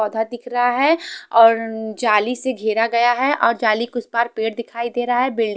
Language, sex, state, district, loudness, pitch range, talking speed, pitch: Hindi, female, Haryana, Jhajjar, -18 LUFS, 225-245 Hz, 225 wpm, 235 Hz